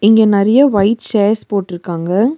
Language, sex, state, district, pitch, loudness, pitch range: Tamil, female, Tamil Nadu, Nilgiris, 205 Hz, -13 LUFS, 200-220 Hz